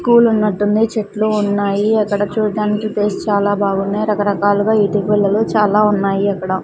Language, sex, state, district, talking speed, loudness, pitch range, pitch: Telugu, female, Andhra Pradesh, Sri Satya Sai, 135 wpm, -15 LUFS, 205-215 Hz, 205 Hz